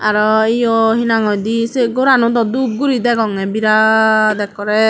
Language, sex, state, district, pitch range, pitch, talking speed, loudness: Chakma, female, Tripura, Dhalai, 215-235 Hz, 225 Hz, 135 wpm, -14 LUFS